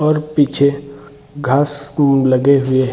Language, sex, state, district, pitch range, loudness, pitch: Hindi, male, Bihar, Gaya, 135-145 Hz, -15 LUFS, 140 Hz